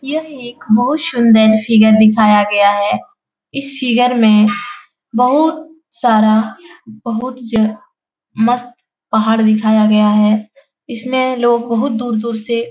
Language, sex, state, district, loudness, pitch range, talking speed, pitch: Hindi, female, Bihar, Jahanabad, -13 LUFS, 220-255 Hz, 125 wpm, 235 Hz